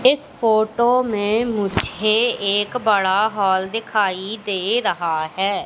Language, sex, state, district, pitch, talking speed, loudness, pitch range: Hindi, female, Madhya Pradesh, Katni, 210 Hz, 115 wpm, -19 LUFS, 195-225 Hz